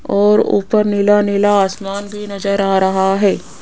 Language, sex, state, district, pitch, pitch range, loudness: Hindi, female, Rajasthan, Jaipur, 200 Hz, 195-205 Hz, -15 LUFS